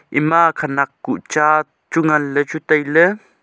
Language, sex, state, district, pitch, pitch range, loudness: Wancho, male, Arunachal Pradesh, Longding, 155 Hz, 145-165 Hz, -16 LUFS